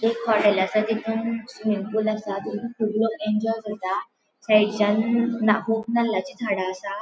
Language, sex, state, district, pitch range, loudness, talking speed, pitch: Konkani, female, Goa, North and South Goa, 210-225 Hz, -24 LUFS, 130 wpm, 215 Hz